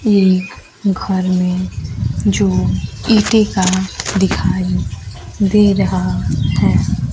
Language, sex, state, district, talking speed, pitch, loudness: Hindi, female, Bihar, Kaimur, 90 wpm, 185 Hz, -15 LUFS